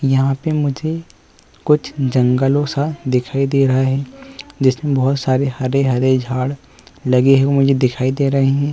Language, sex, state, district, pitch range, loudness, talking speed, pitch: Hindi, male, Uttar Pradesh, Muzaffarnagar, 130-145 Hz, -16 LUFS, 145 wpm, 135 Hz